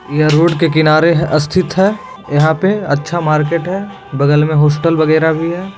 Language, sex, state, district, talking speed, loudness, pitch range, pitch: Hindi, male, Bihar, Begusarai, 175 wpm, -13 LUFS, 155-185 Hz, 160 Hz